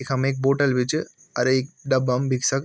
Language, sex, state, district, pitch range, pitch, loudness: Garhwali, male, Uttarakhand, Tehri Garhwal, 130-135 Hz, 135 Hz, -23 LUFS